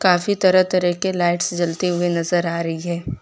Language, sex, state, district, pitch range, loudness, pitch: Hindi, female, Gujarat, Valsad, 170-185 Hz, -19 LUFS, 175 Hz